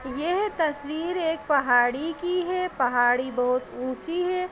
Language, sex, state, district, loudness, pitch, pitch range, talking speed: Hindi, female, Uttar Pradesh, Ghazipur, -25 LUFS, 310 Hz, 255-355 Hz, 145 wpm